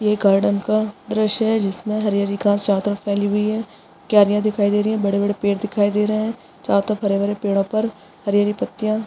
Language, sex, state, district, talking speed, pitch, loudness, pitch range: Hindi, female, Bihar, Madhepura, 205 wpm, 205 Hz, -20 LUFS, 200-215 Hz